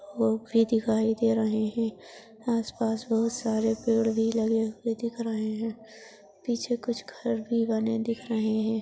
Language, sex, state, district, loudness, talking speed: Hindi, female, Maharashtra, Solapur, -28 LUFS, 165 wpm